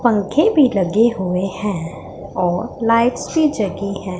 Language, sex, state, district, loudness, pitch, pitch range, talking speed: Hindi, female, Punjab, Pathankot, -18 LUFS, 205 Hz, 185-235 Hz, 145 wpm